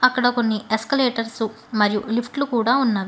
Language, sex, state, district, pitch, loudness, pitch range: Telugu, female, Telangana, Hyderabad, 230 Hz, -21 LUFS, 220-250 Hz